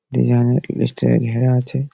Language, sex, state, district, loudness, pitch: Bengali, male, West Bengal, Malda, -18 LUFS, 115 Hz